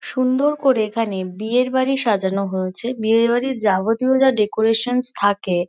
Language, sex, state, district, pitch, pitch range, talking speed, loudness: Bengali, female, West Bengal, Kolkata, 225 Hz, 200-255 Hz, 135 wpm, -19 LUFS